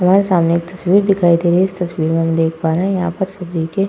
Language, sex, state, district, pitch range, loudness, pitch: Hindi, female, Uttar Pradesh, Hamirpur, 165-190 Hz, -16 LUFS, 175 Hz